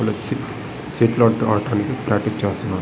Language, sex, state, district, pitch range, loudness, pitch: Telugu, male, Andhra Pradesh, Srikakulam, 105-115 Hz, -20 LUFS, 110 Hz